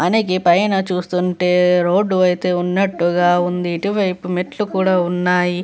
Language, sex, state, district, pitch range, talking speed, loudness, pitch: Telugu, female, Andhra Pradesh, Visakhapatnam, 180-190 Hz, 115 wpm, -17 LUFS, 180 Hz